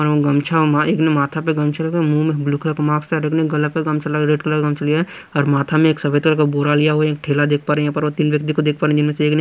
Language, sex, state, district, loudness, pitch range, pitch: Hindi, male, Punjab, Pathankot, -17 LUFS, 150-155 Hz, 150 Hz